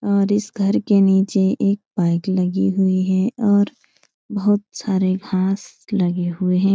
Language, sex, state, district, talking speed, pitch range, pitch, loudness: Hindi, female, Bihar, Supaul, 150 wpm, 185-205 Hz, 195 Hz, -19 LUFS